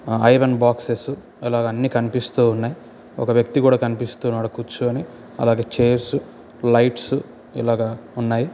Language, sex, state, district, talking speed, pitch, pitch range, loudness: Telugu, male, Andhra Pradesh, Chittoor, 110 wpm, 120 Hz, 115-125 Hz, -20 LUFS